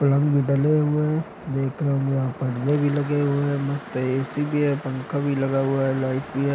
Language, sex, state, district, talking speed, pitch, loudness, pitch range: Hindi, male, Uttar Pradesh, Gorakhpur, 240 wpm, 140 Hz, -23 LUFS, 135-145 Hz